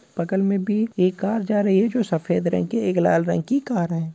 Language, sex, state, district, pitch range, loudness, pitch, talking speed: Marwari, female, Rajasthan, Nagaur, 175-220 Hz, -21 LUFS, 195 Hz, 260 wpm